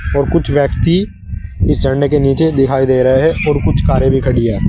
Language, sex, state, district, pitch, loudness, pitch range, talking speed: Hindi, male, Uttar Pradesh, Saharanpur, 135 Hz, -13 LUFS, 120-145 Hz, 215 wpm